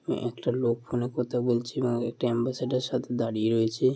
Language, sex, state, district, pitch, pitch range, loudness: Bengali, male, West Bengal, Malda, 120 Hz, 115-125 Hz, -28 LUFS